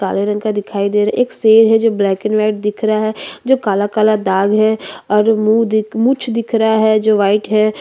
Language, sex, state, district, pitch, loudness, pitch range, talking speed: Hindi, female, Chhattisgarh, Bastar, 215 Hz, -14 LUFS, 210-220 Hz, 230 wpm